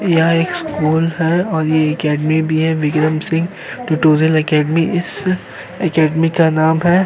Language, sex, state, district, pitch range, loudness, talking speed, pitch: Hindi, male, Uttar Pradesh, Jyotiba Phule Nagar, 155-165 Hz, -15 LUFS, 155 wpm, 160 Hz